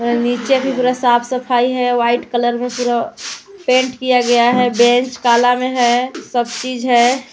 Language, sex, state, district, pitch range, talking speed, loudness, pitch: Hindi, female, Chhattisgarh, Sarguja, 240-255 Hz, 170 wpm, -15 LUFS, 245 Hz